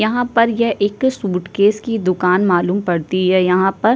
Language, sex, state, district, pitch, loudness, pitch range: Hindi, female, Uttar Pradesh, Jyotiba Phule Nagar, 200 Hz, -16 LUFS, 185-230 Hz